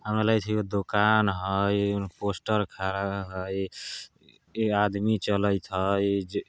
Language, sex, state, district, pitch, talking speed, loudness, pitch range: Bajjika, male, Bihar, Vaishali, 100 Hz, 150 wpm, -27 LUFS, 95-105 Hz